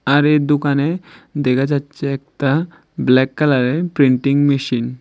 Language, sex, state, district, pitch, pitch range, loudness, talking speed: Bengali, male, Tripura, West Tripura, 140 Hz, 135-150 Hz, -17 LUFS, 130 wpm